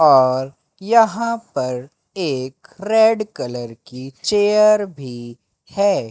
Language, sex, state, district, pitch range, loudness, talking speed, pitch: Hindi, male, Madhya Pradesh, Katni, 125-210 Hz, -18 LUFS, 100 wpm, 140 Hz